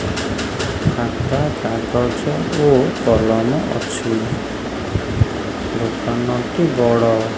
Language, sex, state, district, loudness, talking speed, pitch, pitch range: Odia, male, Odisha, Khordha, -19 LUFS, 55 wpm, 120 Hz, 115-125 Hz